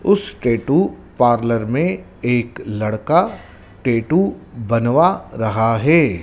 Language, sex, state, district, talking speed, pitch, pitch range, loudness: Hindi, male, Madhya Pradesh, Dhar, 95 wpm, 120 Hz, 110-155 Hz, -18 LUFS